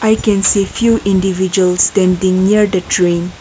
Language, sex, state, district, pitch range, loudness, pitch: English, female, Nagaland, Kohima, 185-205 Hz, -13 LUFS, 190 Hz